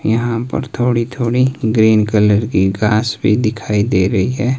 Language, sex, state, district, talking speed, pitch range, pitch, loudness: Hindi, male, Himachal Pradesh, Shimla, 170 wpm, 105-120 Hz, 110 Hz, -15 LUFS